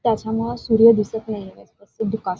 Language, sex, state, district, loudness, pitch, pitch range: Marathi, female, Maharashtra, Dhule, -19 LUFS, 220 Hz, 210-230 Hz